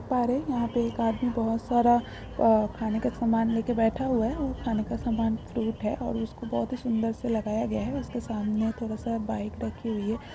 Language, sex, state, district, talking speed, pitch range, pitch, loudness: Hindi, female, Andhra Pradesh, Visakhapatnam, 205 wpm, 220-240 Hz, 225 Hz, -28 LUFS